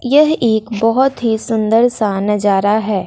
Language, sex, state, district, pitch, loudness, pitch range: Hindi, female, Bihar, West Champaran, 220 Hz, -14 LUFS, 210-245 Hz